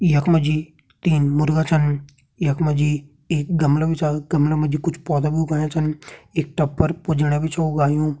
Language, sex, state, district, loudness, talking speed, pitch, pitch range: Garhwali, male, Uttarakhand, Tehri Garhwal, -20 LUFS, 205 wpm, 155 Hz, 145-160 Hz